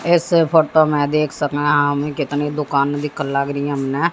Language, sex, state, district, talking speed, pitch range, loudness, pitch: Hindi, female, Haryana, Jhajjar, 175 wpm, 140-155 Hz, -18 LUFS, 145 Hz